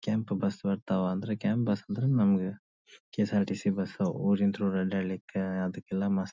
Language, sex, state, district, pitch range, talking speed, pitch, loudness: Kannada, male, Karnataka, Dharwad, 95-100 Hz, 170 wpm, 100 Hz, -30 LUFS